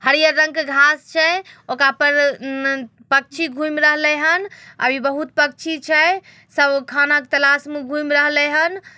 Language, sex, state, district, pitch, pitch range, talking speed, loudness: Magahi, female, Bihar, Samastipur, 295 Hz, 280-315 Hz, 160 wpm, -17 LUFS